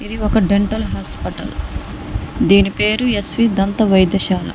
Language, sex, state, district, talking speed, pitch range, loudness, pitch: Telugu, female, Telangana, Mahabubabad, 130 wpm, 195-220 Hz, -16 LUFS, 205 Hz